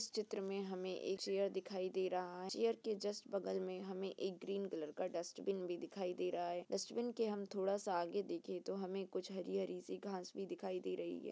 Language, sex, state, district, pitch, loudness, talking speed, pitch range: Hindi, female, Uttar Pradesh, Jyotiba Phule Nagar, 190 Hz, -43 LUFS, 240 wpm, 180-200 Hz